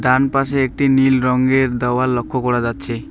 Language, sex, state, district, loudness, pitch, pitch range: Bengali, male, West Bengal, Alipurduar, -17 LUFS, 130 Hz, 125-135 Hz